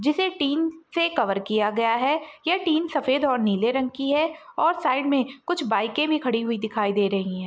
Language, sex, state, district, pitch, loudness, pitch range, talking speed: Hindi, female, Maharashtra, Dhule, 280 Hz, -24 LUFS, 230-320 Hz, 215 wpm